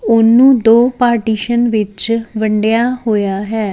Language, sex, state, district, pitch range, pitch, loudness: Punjabi, female, Chandigarh, Chandigarh, 215-235 Hz, 225 Hz, -13 LUFS